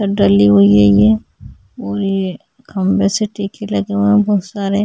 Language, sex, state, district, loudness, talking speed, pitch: Hindi, female, Chhattisgarh, Sukma, -14 LUFS, 185 wpm, 185 Hz